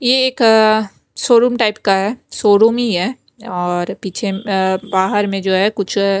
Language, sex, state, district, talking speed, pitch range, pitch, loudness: Hindi, female, Bihar, West Champaran, 155 wpm, 195-230 Hz, 205 Hz, -15 LUFS